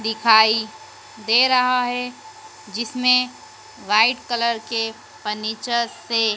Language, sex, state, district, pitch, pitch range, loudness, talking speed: Hindi, female, Madhya Pradesh, Dhar, 230 Hz, 220-250 Hz, -19 LUFS, 95 wpm